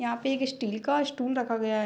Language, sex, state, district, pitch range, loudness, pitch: Hindi, female, Bihar, Darbhanga, 225-270 Hz, -29 LUFS, 250 Hz